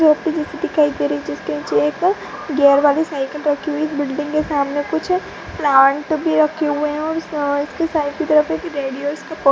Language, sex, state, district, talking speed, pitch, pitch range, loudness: Hindi, female, Bihar, Purnia, 120 wpm, 300 Hz, 285-315 Hz, -18 LUFS